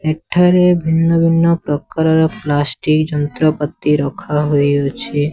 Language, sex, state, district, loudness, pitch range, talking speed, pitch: Odia, male, Odisha, Sambalpur, -15 LUFS, 145-165 Hz, 110 wpm, 155 Hz